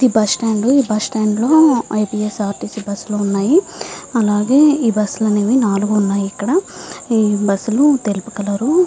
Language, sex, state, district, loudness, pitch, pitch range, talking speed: Telugu, female, Andhra Pradesh, Visakhapatnam, -16 LUFS, 215 Hz, 205-255 Hz, 205 wpm